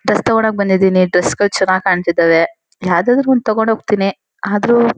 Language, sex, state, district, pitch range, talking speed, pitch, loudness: Kannada, female, Karnataka, Shimoga, 185-225 Hz, 130 wpm, 200 Hz, -14 LUFS